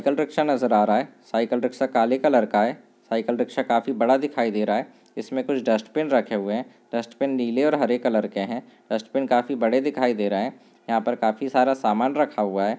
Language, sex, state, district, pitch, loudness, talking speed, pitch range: Hindi, male, Bihar, Samastipur, 120 Hz, -23 LUFS, 220 wpm, 115-135 Hz